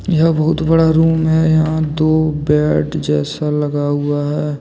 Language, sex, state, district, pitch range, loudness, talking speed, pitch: Hindi, male, Jharkhand, Deoghar, 145-160 Hz, -15 LUFS, 155 wpm, 155 Hz